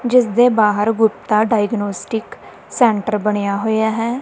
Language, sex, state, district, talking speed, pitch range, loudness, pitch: Punjabi, female, Punjab, Kapurthala, 130 wpm, 210-230 Hz, -17 LUFS, 220 Hz